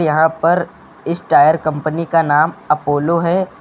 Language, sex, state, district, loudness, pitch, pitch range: Hindi, male, Uttar Pradesh, Lucknow, -15 LUFS, 165 Hz, 155-170 Hz